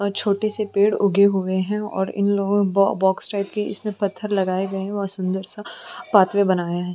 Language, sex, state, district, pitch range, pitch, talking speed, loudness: Hindi, female, Uttar Pradesh, Budaun, 190-205 Hz, 200 Hz, 215 wpm, -21 LUFS